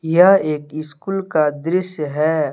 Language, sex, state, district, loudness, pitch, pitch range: Hindi, male, Jharkhand, Deoghar, -18 LUFS, 155 Hz, 150-180 Hz